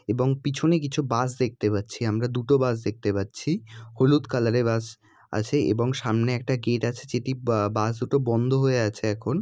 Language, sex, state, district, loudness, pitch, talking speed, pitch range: Bengali, female, West Bengal, Jalpaiguri, -25 LUFS, 120 Hz, 185 wpm, 110-130 Hz